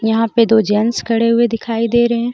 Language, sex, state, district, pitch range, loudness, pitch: Hindi, female, Jharkhand, Deoghar, 225-235 Hz, -15 LUFS, 230 Hz